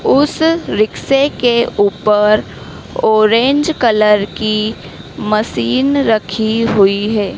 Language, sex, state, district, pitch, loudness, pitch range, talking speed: Hindi, female, Madhya Pradesh, Dhar, 220 Hz, -13 LUFS, 210-250 Hz, 80 wpm